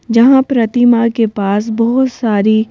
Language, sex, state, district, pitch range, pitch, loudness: Hindi, female, Madhya Pradesh, Bhopal, 220-245 Hz, 230 Hz, -12 LUFS